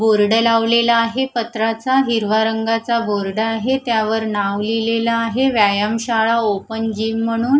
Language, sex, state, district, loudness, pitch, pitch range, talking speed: Marathi, female, Maharashtra, Gondia, -17 LUFS, 225 Hz, 220-230 Hz, 135 wpm